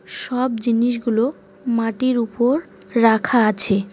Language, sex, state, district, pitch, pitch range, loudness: Bengali, female, West Bengal, Cooch Behar, 235 Hz, 225-250 Hz, -18 LUFS